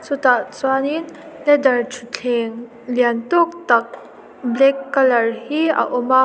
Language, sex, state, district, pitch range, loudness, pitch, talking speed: Mizo, female, Mizoram, Aizawl, 240-290 Hz, -18 LUFS, 260 Hz, 125 wpm